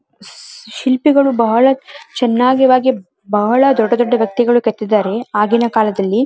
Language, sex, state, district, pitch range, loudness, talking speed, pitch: Kannada, female, Karnataka, Dharwad, 220-260 Hz, -14 LUFS, 85 wpm, 240 Hz